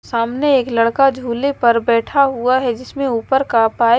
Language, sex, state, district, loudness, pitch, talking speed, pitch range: Hindi, female, Maharashtra, Mumbai Suburban, -16 LUFS, 245 Hz, 195 wpm, 230-270 Hz